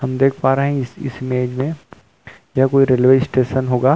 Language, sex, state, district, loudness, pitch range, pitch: Hindi, male, Chhattisgarh, Rajnandgaon, -17 LUFS, 130-135 Hz, 130 Hz